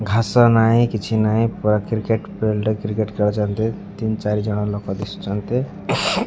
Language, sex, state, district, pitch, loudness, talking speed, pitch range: Odia, male, Odisha, Malkangiri, 110 Hz, -20 LUFS, 145 wpm, 105-115 Hz